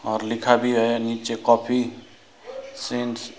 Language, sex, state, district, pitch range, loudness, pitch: Hindi, male, West Bengal, Alipurduar, 115-120 Hz, -22 LUFS, 120 Hz